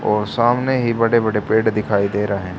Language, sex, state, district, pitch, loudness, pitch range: Hindi, male, Haryana, Charkhi Dadri, 110 Hz, -18 LUFS, 105-115 Hz